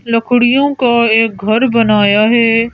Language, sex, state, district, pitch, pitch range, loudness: Hindi, female, Madhya Pradesh, Bhopal, 230 Hz, 220-245 Hz, -11 LUFS